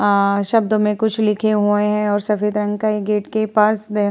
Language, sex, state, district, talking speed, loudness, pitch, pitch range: Hindi, female, Uttar Pradesh, Muzaffarnagar, 250 wpm, -18 LUFS, 210 Hz, 205-215 Hz